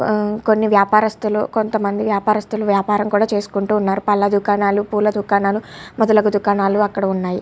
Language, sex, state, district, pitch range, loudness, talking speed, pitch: Telugu, female, Andhra Pradesh, Guntur, 200-215 Hz, -17 LUFS, 140 wpm, 205 Hz